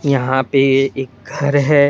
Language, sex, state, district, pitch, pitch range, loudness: Hindi, male, Tripura, West Tripura, 135 Hz, 135-140 Hz, -15 LUFS